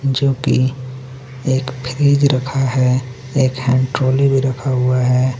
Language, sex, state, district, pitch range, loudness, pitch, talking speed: Hindi, male, Jharkhand, Garhwa, 130-135 Hz, -16 LUFS, 130 Hz, 145 wpm